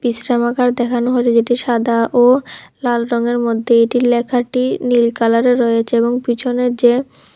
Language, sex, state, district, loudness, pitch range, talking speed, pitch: Bengali, female, Tripura, West Tripura, -15 LUFS, 235-245 Hz, 130 wpm, 240 Hz